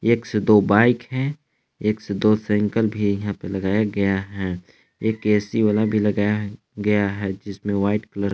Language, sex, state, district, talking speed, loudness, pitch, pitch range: Hindi, male, Jharkhand, Palamu, 185 wpm, -21 LUFS, 105 Hz, 100-110 Hz